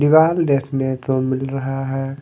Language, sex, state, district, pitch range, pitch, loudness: Hindi, male, Delhi, New Delhi, 135-140 Hz, 135 Hz, -19 LUFS